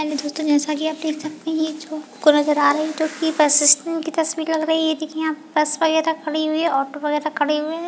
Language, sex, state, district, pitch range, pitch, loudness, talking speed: Hindi, female, Chhattisgarh, Bilaspur, 300-320 Hz, 310 Hz, -19 LUFS, 275 wpm